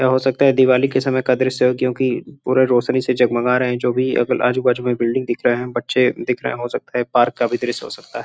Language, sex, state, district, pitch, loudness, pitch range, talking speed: Hindi, male, Uttar Pradesh, Gorakhpur, 125 Hz, -18 LUFS, 125-130 Hz, 305 wpm